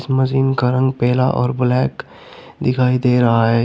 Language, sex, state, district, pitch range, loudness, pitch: Hindi, male, Uttar Pradesh, Shamli, 125-130 Hz, -16 LUFS, 125 Hz